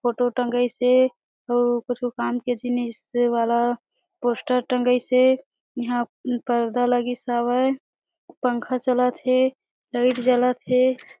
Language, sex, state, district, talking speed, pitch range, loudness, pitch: Chhattisgarhi, female, Chhattisgarh, Sarguja, 130 wpm, 240-255 Hz, -22 LUFS, 245 Hz